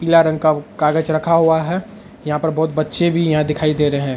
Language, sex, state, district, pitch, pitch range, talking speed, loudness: Hindi, male, Bihar, Araria, 160 Hz, 150-165 Hz, 245 wpm, -17 LUFS